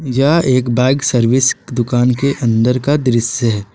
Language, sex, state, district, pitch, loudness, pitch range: Hindi, male, Jharkhand, Garhwa, 125 Hz, -14 LUFS, 120-135 Hz